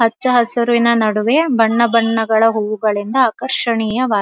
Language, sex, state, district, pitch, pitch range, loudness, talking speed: Kannada, female, Karnataka, Dharwad, 230 Hz, 220-235 Hz, -15 LUFS, 100 wpm